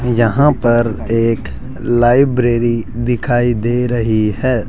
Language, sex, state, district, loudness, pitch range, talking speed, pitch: Hindi, male, Rajasthan, Jaipur, -15 LUFS, 115-125 Hz, 100 wpm, 120 Hz